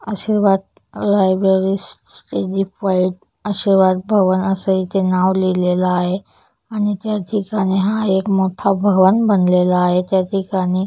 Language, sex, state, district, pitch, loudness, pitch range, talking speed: Marathi, female, Maharashtra, Chandrapur, 190 Hz, -17 LUFS, 185-200 Hz, 115 wpm